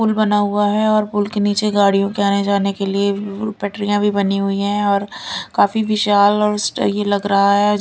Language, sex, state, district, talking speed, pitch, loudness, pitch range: Hindi, female, Delhi, New Delhi, 205 wpm, 205 Hz, -17 LUFS, 200-210 Hz